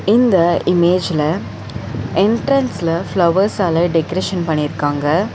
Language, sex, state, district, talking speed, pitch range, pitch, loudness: Tamil, female, Tamil Nadu, Chennai, 65 wpm, 150-185 Hz, 170 Hz, -16 LUFS